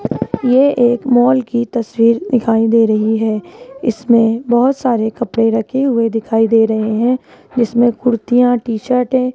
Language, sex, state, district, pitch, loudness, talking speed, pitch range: Hindi, female, Rajasthan, Jaipur, 235 Hz, -14 LUFS, 155 wpm, 225-250 Hz